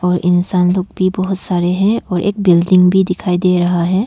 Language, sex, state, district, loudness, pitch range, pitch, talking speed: Hindi, female, Arunachal Pradesh, Longding, -14 LUFS, 180-190 Hz, 180 Hz, 220 wpm